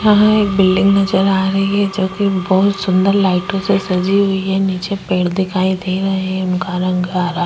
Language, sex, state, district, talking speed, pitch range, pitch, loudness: Hindi, female, Uttar Pradesh, Hamirpur, 210 wpm, 185-195 Hz, 190 Hz, -15 LUFS